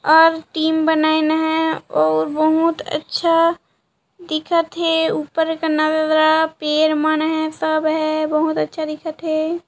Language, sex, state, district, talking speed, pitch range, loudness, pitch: Chhattisgarhi, female, Chhattisgarh, Jashpur, 120 wpm, 310-320 Hz, -18 LUFS, 315 Hz